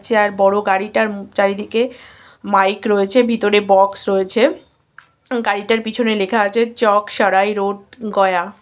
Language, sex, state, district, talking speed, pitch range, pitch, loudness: Bengali, female, West Bengal, Kolkata, 125 wpm, 195-220 Hz, 205 Hz, -16 LUFS